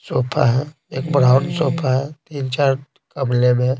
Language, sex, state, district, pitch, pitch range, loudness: Hindi, male, Bihar, Patna, 135 Hz, 130-145 Hz, -19 LUFS